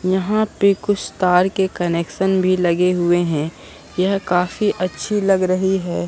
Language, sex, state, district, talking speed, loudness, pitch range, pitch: Hindi, male, Bihar, Katihar, 160 wpm, -18 LUFS, 175-195 Hz, 185 Hz